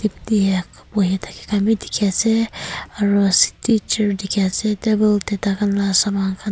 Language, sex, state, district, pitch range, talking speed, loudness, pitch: Nagamese, female, Nagaland, Kohima, 195-215 Hz, 140 wpm, -19 LUFS, 205 Hz